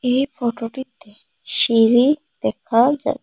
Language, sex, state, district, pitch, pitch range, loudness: Bengali, female, Assam, Hailakandi, 245 Hz, 230-270 Hz, -17 LUFS